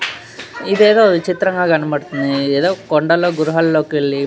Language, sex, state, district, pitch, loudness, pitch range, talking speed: Telugu, male, Telangana, Nalgonda, 160 Hz, -15 LUFS, 145-185 Hz, 100 wpm